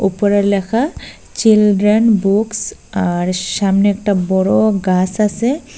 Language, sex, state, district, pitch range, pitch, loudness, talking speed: Bengali, female, Assam, Hailakandi, 195-215 Hz, 205 Hz, -15 LUFS, 105 wpm